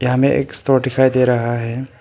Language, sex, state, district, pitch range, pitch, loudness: Hindi, male, Arunachal Pradesh, Papum Pare, 120-130 Hz, 125 Hz, -17 LUFS